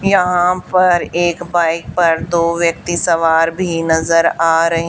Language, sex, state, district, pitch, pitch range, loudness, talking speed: Hindi, female, Haryana, Charkhi Dadri, 170 Hz, 165-175 Hz, -14 LUFS, 145 wpm